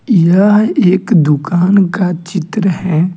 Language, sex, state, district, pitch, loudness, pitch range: Hindi, male, Jharkhand, Deoghar, 185 Hz, -12 LUFS, 175-195 Hz